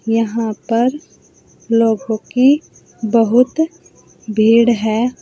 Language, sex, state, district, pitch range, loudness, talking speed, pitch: Hindi, female, Uttar Pradesh, Saharanpur, 220-245 Hz, -15 LUFS, 80 wpm, 230 Hz